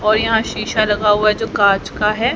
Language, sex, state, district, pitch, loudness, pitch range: Hindi, female, Haryana, Rohtak, 215 Hz, -16 LUFS, 210-220 Hz